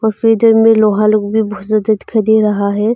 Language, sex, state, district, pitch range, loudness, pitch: Hindi, female, Arunachal Pradesh, Longding, 210-220 Hz, -12 LUFS, 215 Hz